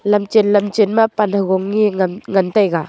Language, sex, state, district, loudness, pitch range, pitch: Wancho, female, Arunachal Pradesh, Longding, -16 LUFS, 190-210 Hz, 205 Hz